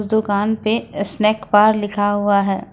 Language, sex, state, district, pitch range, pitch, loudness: Hindi, female, Jharkhand, Ranchi, 205-215 Hz, 210 Hz, -17 LUFS